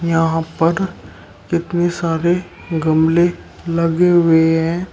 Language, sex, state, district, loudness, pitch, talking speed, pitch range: Hindi, male, Uttar Pradesh, Shamli, -16 LUFS, 165 Hz, 95 wpm, 160-175 Hz